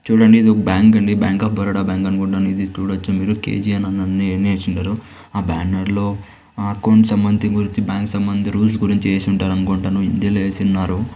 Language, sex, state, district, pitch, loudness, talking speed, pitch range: Telugu, male, Andhra Pradesh, Anantapur, 100 Hz, -17 LUFS, 190 wpm, 95-105 Hz